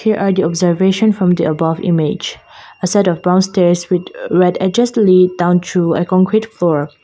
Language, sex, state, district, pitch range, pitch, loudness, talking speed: English, female, Mizoram, Aizawl, 175-190 Hz, 180 Hz, -14 LUFS, 170 wpm